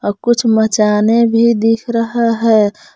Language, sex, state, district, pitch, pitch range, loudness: Hindi, female, Jharkhand, Palamu, 225 Hz, 220-235 Hz, -13 LUFS